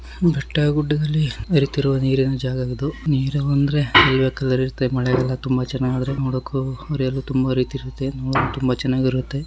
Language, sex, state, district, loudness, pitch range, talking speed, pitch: Kannada, male, Karnataka, Shimoga, -20 LUFS, 130-140 Hz, 135 wpm, 135 Hz